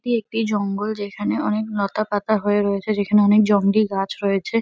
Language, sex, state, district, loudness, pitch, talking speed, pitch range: Bengali, female, West Bengal, Kolkata, -20 LUFS, 205 Hz, 170 wpm, 200-215 Hz